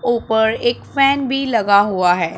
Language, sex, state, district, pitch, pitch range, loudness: Hindi, male, Punjab, Pathankot, 230 Hz, 200-260 Hz, -16 LUFS